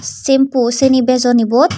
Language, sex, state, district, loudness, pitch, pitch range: Chakma, female, Tripura, Dhalai, -13 LUFS, 255 Hz, 245-270 Hz